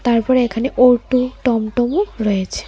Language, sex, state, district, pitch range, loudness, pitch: Bengali, female, Tripura, West Tripura, 230-255 Hz, -16 LUFS, 245 Hz